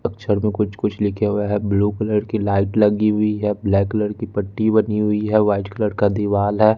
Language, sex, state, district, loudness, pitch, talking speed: Hindi, male, Bihar, West Champaran, -19 LUFS, 105 Hz, 230 wpm